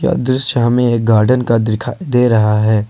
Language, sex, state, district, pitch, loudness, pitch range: Hindi, male, Jharkhand, Ranchi, 120 Hz, -14 LUFS, 110-125 Hz